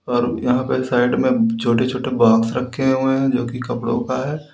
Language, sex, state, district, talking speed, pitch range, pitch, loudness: Hindi, male, Uttar Pradesh, Lalitpur, 210 wpm, 120-135 Hz, 125 Hz, -19 LUFS